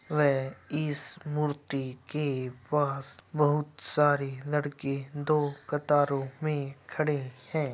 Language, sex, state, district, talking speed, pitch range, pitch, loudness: Hindi, male, Bihar, Samastipur, 100 wpm, 135-150 Hz, 145 Hz, -30 LUFS